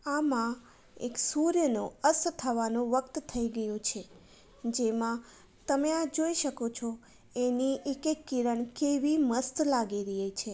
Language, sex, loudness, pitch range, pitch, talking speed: Gujarati, female, -31 LUFS, 235-295 Hz, 250 Hz, 140 wpm